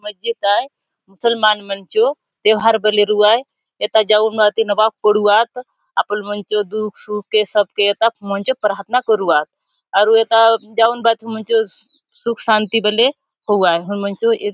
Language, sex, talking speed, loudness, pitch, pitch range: Halbi, female, 175 wpm, -16 LUFS, 215 Hz, 205-225 Hz